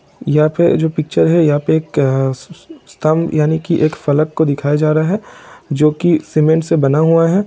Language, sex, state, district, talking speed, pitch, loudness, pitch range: Hindi, male, Jharkhand, Sahebganj, 200 wpm, 155 Hz, -14 LUFS, 150-165 Hz